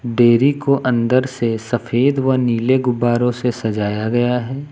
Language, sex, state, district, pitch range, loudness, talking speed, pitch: Hindi, male, Uttar Pradesh, Lucknow, 120-130 Hz, -17 LUFS, 150 wpm, 120 Hz